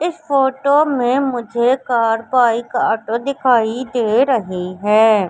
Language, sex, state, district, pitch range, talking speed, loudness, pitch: Hindi, female, Madhya Pradesh, Katni, 225-265 Hz, 125 wpm, -16 LUFS, 245 Hz